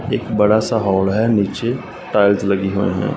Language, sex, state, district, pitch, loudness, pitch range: Hindi, male, Punjab, Fazilka, 105 Hz, -17 LUFS, 100-110 Hz